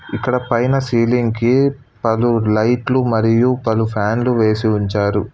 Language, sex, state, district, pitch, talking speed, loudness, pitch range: Telugu, male, Telangana, Hyderabad, 115 Hz, 125 wpm, -16 LUFS, 110-125 Hz